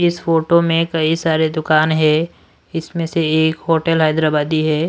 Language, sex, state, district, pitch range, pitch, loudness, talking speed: Hindi, male, Odisha, Sambalpur, 155-165 Hz, 160 Hz, -16 LUFS, 160 wpm